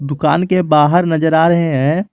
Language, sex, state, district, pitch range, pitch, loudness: Hindi, male, Jharkhand, Garhwa, 150-175 Hz, 160 Hz, -13 LUFS